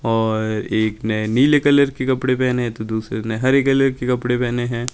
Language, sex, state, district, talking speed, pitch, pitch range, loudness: Hindi, male, Himachal Pradesh, Shimla, 220 wpm, 120 Hz, 110-130 Hz, -19 LUFS